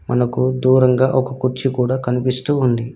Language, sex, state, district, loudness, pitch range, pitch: Telugu, male, Telangana, Mahabubabad, -17 LUFS, 125-130 Hz, 130 Hz